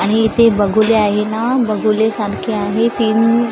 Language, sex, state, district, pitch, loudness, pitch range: Marathi, female, Maharashtra, Gondia, 220 Hz, -15 LUFS, 210-230 Hz